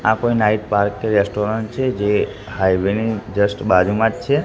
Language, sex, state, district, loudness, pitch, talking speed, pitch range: Gujarati, male, Gujarat, Gandhinagar, -18 LUFS, 105 Hz, 175 wpm, 100-110 Hz